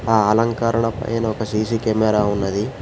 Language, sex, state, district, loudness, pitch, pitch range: Telugu, male, Telangana, Hyderabad, -19 LUFS, 110 Hz, 110-115 Hz